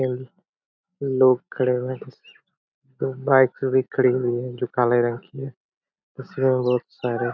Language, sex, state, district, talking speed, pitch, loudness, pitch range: Hindi, male, Chhattisgarh, Korba, 145 wpm, 130 Hz, -22 LUFS, 125-130 Hz